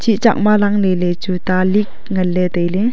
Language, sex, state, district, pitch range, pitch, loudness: Wancho, female, Arunachal Pradesh, Longding, 180-210 Hz, 190 Hz, -16 LUFS